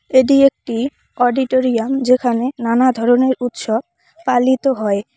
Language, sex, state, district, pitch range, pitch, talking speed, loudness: Bengali, female, West Bengal, Cooch Behar, 240-265 Hz, 255 Hz, 105 wpm, -16 LUFS